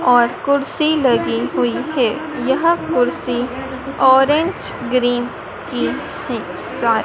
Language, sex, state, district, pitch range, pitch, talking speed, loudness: Hindi, female, Madhya Pradesh, Dhar, 240-280 Hz, 255 Hz, 100 wpm, -18 LUFS